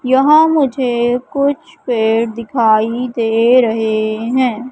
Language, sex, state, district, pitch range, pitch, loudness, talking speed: Hindi, female, Madhya Pradesh, Katni, 225-265 Hz, 245 Hz, -14 LUFS, 100 wpm